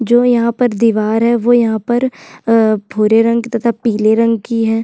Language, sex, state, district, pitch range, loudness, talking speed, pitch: Hindi, female, Chhattisgarh, Sukma, 220-235 Hz, -13 LUFS, 185 wpm, 230 Hz